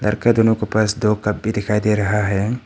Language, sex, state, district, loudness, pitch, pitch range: Hindi, male, Arunachal Pradesh, Papum Pare, -18 LUFS, 105 Hz, 105-110 Hz